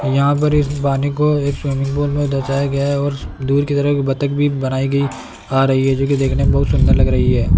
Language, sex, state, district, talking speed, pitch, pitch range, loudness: Hindi, male, Rajasthan, Jaipur, 245 wpm, 140 Hz, 135-145 Hz, -17 LUFS